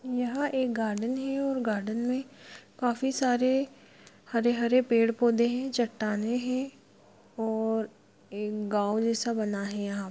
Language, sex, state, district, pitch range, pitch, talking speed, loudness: Hindi, female, Bihar, East Champaran, 220-255 Hz, 235 Hz, 125 wpm, -29 LUFS